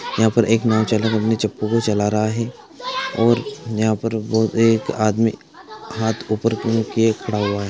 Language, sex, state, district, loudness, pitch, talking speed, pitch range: Hindi, male, Andhra Pradesh, Anantapur, -19 LUFS, 110 Hz, 180 wpm, 110-115 Hz